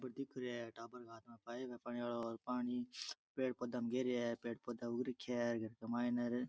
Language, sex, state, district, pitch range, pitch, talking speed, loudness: Rajasthani, male, Rajasthan, Churu, 120-125 Hz, 120 Hz, 270 wpm, -43 LUFS